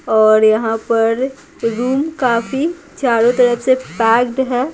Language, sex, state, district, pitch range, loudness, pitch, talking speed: Hindi, female, Bihar, Patna, 225-265 Hz, -15 LUFS, 245 Hz, 125 wpm